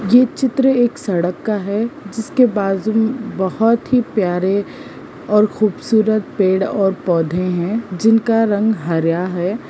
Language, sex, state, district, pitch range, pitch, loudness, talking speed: Hindi, female, Bihar, Jahanabad, 190-225 Hz, 210 Hz, -17 LUFS, 130 wpm